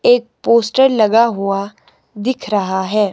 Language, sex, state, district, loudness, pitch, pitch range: Hindi, male, Himachal Pradesh, Shimla, -15 LUFS, 215 Hz, 200-255 Hz